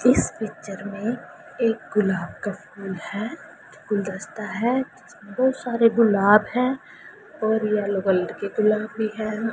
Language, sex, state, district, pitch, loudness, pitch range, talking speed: Hindi, female, Punjab, Pathankot, 215 Hz, -23 LUFS, 205-235 Hz, 140 wpm